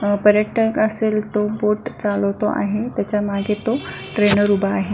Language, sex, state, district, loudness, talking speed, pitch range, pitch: Marathi, female, Maharashtra, Solapur, -19 LUFS, 160 wpm, 205-215 Hz, 210 Hz